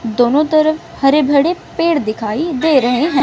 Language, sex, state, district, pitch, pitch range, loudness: Hindi, female, Chandigarh, Chandigarh, 285 Hz, 245-310 Hz, -14 LUFS